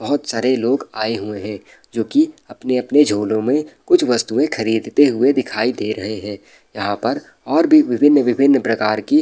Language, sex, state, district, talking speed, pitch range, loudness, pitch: Hindi, male, Bihar, Madhepura, 175 wpm, 110-145 Hz, -17 LUFS, 125 Hz